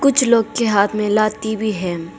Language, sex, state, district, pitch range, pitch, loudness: Hindi, female, Arunachal Pradesh, Papum Pare, 200-230 Hz, 215 Hz, -17 LUFS